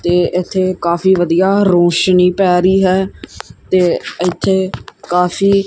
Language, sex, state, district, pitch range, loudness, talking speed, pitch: Punjabi, male, Punjab, Kapurthala, 175-190 Hz, -13 LUFS, 115 wpm, 180 Hz